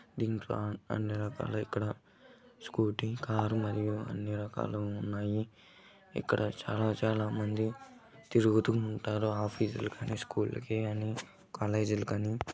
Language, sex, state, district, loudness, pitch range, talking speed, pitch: Telugu, male, Andhra Pradesh, Guntur, -34 LUFS, 105-110 Hz, 115 wpm, 110 Hz